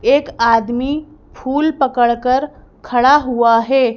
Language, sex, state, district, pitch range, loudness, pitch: Hindi, female, Madhya Pradesh, Bhopal, 240-285 Hz, -15 LUFS, 260 Hz